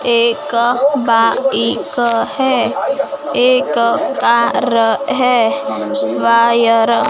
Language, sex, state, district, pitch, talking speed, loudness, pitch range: Hindi, female, Maharashtra, Gondia, 235 Hz, 70 wpm, -14 LUFS, 230-255 Hz